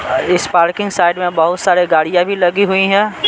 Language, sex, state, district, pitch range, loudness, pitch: Hindi, male, Bihar, Patna, 175-195 Hz, -13 LUFS, 180 Hz